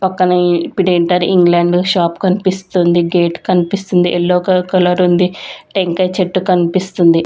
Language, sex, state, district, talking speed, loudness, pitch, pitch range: Telugu, female, Andhra Pradesh, Sri Satya Sai, 105 wpm, -13 LUFS, 180 Hz, 175-185 Hz